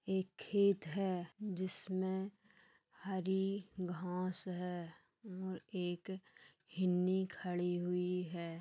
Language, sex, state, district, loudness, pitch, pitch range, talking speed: Hindi, female, Bihar, Madhepura, -40 LUFS, 185 Hz, 180-190 Hz, 90 wpm